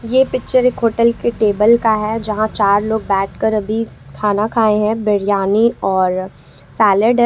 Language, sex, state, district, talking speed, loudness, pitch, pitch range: Hindi, female, Jharkhand, Ranchi, 165 wpm, -15 LUFS, 215 Hz, 205-230 Hz